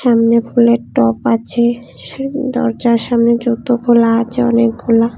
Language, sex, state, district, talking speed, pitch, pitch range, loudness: Bengali, female, Tripura, West Tripura, 125 wpm, 235 Hz, 230-240 Hz, -14 LUFS